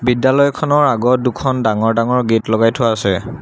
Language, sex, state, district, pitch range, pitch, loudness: Assamese, male, Assam, Sonitpur, 115-130 Hz, 125 Hz, -15 LUFS